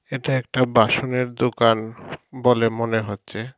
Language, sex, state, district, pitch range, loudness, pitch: Bengali, male, Tripura, Dhalai, 110-130 Hz, -21 LUFS, 120 Hz